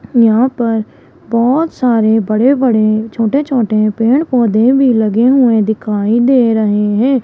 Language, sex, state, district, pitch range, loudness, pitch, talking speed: Hindi, female, Rajasthan, Jaipur, 220-255 Hz, -12 LUFS, 230 Hz, 140 wpm